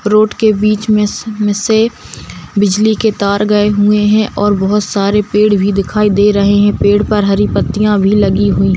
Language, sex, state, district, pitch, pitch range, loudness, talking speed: Hindi, female, Bihar, Darbhanga, 205 Hz, 200-210 Hz, -12 LUFS, 200 wpm